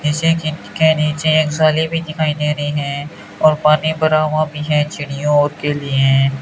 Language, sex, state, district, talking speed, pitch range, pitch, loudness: Hindi, male, Rajasthan, Bikaner, 160 wpm, 145-155 Hz, 150 Hz, -16 LUFS